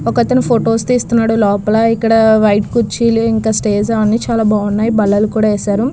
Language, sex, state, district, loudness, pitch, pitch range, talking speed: Telugu, female, Andhra Pradesh, Krishna, -13 LUFS, 220 Hz, 210-230 Hz, 160 wpm